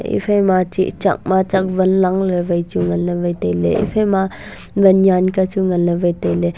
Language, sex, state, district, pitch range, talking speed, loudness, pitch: Wancho, male, Arunachal Pradesh, Longding, 175-190 Hz, 245 wpm, -16 LUFS, 185 Hz